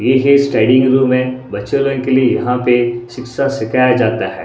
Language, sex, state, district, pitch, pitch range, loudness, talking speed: Hindi, male, Odisha, Sambalpur, 130 Hz, 120-130 Hz, -13 LUFS, 230 wpm